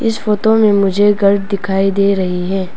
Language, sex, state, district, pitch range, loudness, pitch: Hindi, female, Arunachal Pradesh, Papum Pare, 195-205 Hz, -13 LUFS, 200 Hz